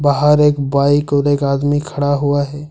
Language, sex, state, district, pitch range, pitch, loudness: Hindi, male, Jharkhand, Ranchi, 140-145 Hz, 145 Hz, -15 LUFS